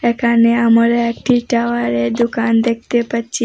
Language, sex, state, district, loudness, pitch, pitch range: Bengali, female, Assam, Hailakandi, -15 LUFS, 235 Hz, 230-235 Hz